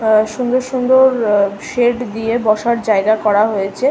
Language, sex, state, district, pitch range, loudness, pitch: Bengali, female, West Bengal, North 24 Parganas, 215-245 Hz, -15 LUFS, 225 Hz